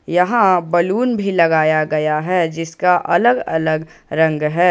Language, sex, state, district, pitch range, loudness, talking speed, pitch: Hindi, male, Jharkhand, Ranchi, 160-180 Hz, -16 LUFS, 140 wpm, 170 Hz